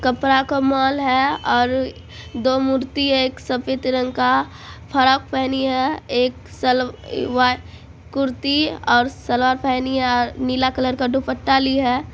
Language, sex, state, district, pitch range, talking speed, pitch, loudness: Maithili, female, Bihar, Supaul, 255-270 Hz, 160 wpm, 260 Hz, -19 LUFS